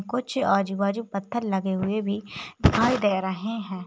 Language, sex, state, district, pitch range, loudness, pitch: Hindi, female, Chhattisgarh, Raigarh, 190-230 Hz, -25 LUFS, 200 Hz